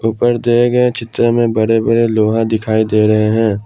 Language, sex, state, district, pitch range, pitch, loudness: Hindi, male, Assam, Kamrup Metropolitan, 110-120 Hz, 115 Hz, -13 LUFS